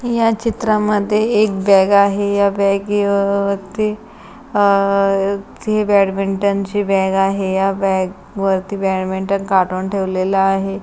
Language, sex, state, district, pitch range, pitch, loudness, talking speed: Marathi, female, Maharashtra, Pune, 195-205 Hz, 200 Hz, -16 LUFS, 115 wpm